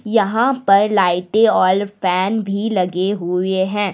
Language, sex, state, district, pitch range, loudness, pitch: Hindi, female, Jharkhand, Deoghar, 185-215 Hz, -17 LUFS, 200 Hz